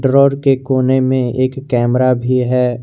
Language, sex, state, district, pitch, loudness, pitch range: Hindi, male, Jharkhand, Garhwa, 130 Hz, -14 LUFS, 125-135 Hz